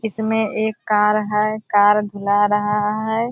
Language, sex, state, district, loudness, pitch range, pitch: Hindi, female, Bihar, Purnia, -18 LUFS, 210-220 Hz, 210 Hz